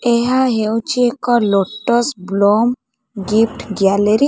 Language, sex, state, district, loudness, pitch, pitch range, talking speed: Odia, female, Odisha, Khordha, -16 LUFS, 225 Hz, 205-245 Hz, 110 wpm